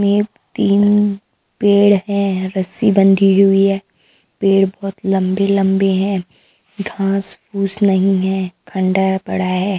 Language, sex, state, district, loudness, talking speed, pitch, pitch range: Hindi, female, Maharashtra, Mumbai Suburban, -15 LUFS, 125 wpm, 195 Hz, 190-200 Hz